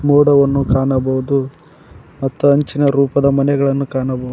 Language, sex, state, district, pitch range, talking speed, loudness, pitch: Kannada, male, Karnataka, Koppal, 135-140 Hz, 95 wpm, -15 LUFS, 140 Hz